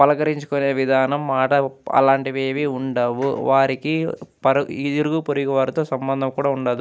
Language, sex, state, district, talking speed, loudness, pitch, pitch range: Telugu, male, Andhra Pradesh, Anantapur, 125 wpm, -20 LUFS, 135 Hz, 135-145 Hz